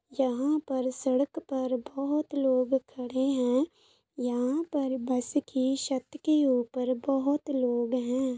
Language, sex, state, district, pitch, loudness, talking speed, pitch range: Hindi, female, Bihar, East Champaran, 265 Hz, -29 LUFS, 130 wpm, 255-285 Hz